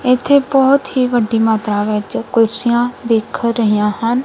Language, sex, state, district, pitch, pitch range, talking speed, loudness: Punjabi, female, Punjab, Kapurthala, 235 Hz, 220-250 Hz, 140 wpm, -15 LUFS